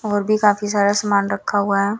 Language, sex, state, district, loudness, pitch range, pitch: Hindi, female, Chandigarh, Chandigarh, -18 LUFS, 200-210 Hz, 205 Hz